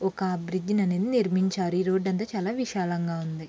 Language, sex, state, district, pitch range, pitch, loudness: Telugu, female, Andhra Pradesh, Srikakulam, 180-200 Hz, 190 Hz, -27 LUFS